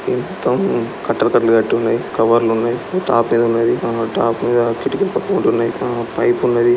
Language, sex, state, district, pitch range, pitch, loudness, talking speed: Telugu, male, Andhra Pradesh, Srikakulam, 115-120 Hz, 115 Hz, -17 LUFS, 105 wpm